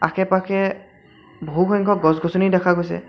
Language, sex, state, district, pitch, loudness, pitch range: Assamese, male, Assam, Sonitpur, 190 Hz, -19 LUFS, 175-195 Hz